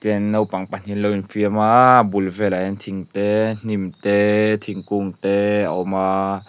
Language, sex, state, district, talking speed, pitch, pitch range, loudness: Mizo, male, Mizoram, Aizawl, 155 wpm, 100 Hz, 95-105 Hz, -19 LUFS